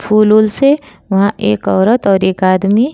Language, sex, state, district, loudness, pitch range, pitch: Bhojpuri, female, Uttar Pradesh, Gorakhpur, -12 LUFS, 190-220 Hz, 205 Hz